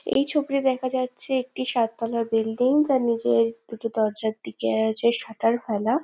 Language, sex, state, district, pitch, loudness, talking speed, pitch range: Bengali, female, West Bengal, Jhargram, 230 Hz, -23 LUFS, 150 wpm, 225-255 Hz